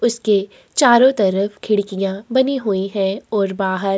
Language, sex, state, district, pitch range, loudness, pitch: Hindi, female, Chhattisgarh, Korba, 195-230 Hz, -17 LUFS, 200 Hz